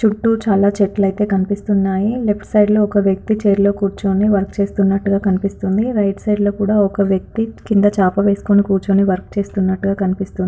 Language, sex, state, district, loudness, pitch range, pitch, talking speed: Telugu, female, Andhra Pradesh, Anantapur, -16 LUFS, 195-205 Hz, 200 Hz, 160 wpm